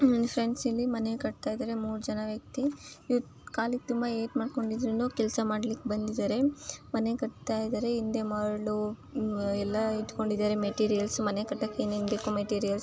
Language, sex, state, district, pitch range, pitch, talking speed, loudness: Kannada, female, Karnataka, Chamarajanagar, 210-240 Hz, 225 Hz, 135 wpm, -31 LUFS